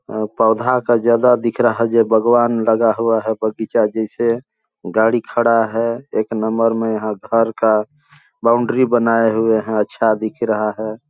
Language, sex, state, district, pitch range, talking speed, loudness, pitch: Hindi, male, Chhattisgarh, Balrampur, 110-115 Hz, 175 wpm, -17 LUFS, 115 Hz